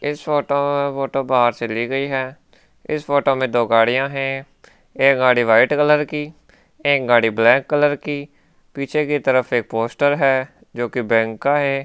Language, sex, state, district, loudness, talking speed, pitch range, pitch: Hindi, male, Rajasthan, Churu, -18 LUFS, 170 wpm, 125-145 Hz, 135 Hz